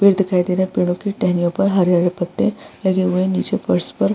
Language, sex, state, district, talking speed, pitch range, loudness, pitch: Hindi, female, Bihar, Vaishali, 215 wpm, 180-190 Hz, -18 LUFS, 185 Hz